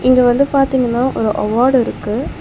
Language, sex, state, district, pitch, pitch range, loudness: Tamil, female, Tamil Nadu, Chennai, 255 Hz, 240-265 Hz, -15 LUFS